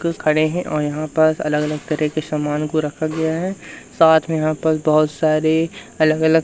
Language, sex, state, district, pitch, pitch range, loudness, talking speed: Hindi, male, Madhya Pradesh, Umaria, 155 Hz, 155-160 Hz, -18 LUFS, 205 wpm